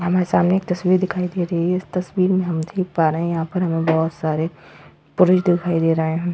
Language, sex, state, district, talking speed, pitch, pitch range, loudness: Hindi, female, Uttar Pradesh, Etah, 245 wpm, 175 Hz, 165-180 Hz, -20 LUFS